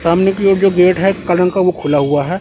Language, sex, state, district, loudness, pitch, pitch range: Hindi, male, Chandigarh, Chandigarh, -13 LUFS, 180 Hz, 170-195 Hz